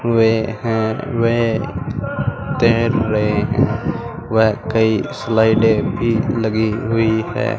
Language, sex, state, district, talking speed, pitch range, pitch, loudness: Hindi, male, Rajasthan, Bikaner, 105 wpm, 110-115 Hz, 115 Hz, -17 LUFS